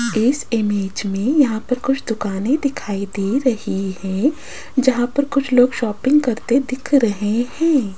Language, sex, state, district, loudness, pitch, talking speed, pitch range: Hindi, female, Rajasthan, Jaipur, -19 LUFS, 240 Hz, 150 wpm, 210-270 Hz